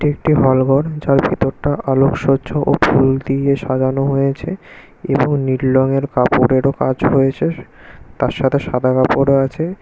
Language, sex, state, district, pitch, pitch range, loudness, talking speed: Bengali, male, West Bengal, Kolkata, 135 Hz, 130-140 Hz, -15 LUFS, 135 wpm